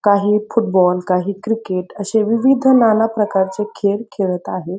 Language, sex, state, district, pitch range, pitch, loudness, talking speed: Marathi, female, Maharashtra, Pune, 190-225 Hz, 205 Hz, -17 LUFS, 125 wpm